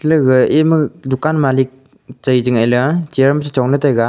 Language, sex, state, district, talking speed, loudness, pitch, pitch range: Wancho, male, Arunachal Pradesh, Longding, 205 wpm, -14 LUFS, 135 Hz, 130-150 Hz